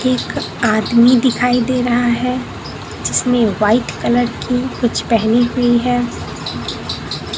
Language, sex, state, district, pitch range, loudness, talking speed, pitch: Hindi, female, Bihar, Katihar, 235-250 Hz, -16 LUFS, 115 wpm, 245 Hz